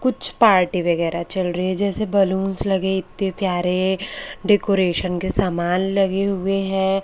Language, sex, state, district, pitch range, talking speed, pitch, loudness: Hindi, male, Maharashtra, Gondia, 185-195 Hz, 145 wpm, 190 Hz, -20 LUFS